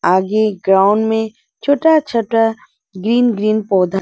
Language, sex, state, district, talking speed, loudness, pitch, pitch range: Hindi, female, Arunachal Pradesh, Lower Dibang Valley, 135 wpm, -15 LUFS, 220 Hz, 195-235 Hz